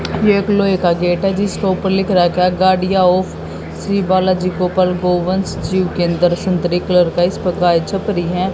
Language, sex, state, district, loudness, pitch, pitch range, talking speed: Hindi, female, Haryana, Jhajjar, -15 LUFS, 185 Hz, 175-190 Hz, 190 wpm